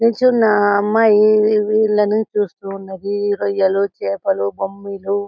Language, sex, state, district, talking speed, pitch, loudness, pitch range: Telugu, female, Telangana, Karimnagar, 80 wpm, 205 Hz, -16 LUFS, 195-215 Hz